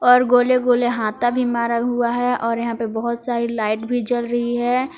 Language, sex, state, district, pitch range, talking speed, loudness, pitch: Hindi, female, Jharkhand, Palamu, 235-245 Hz, 215 wpm, -19 LUFS, 240 Hz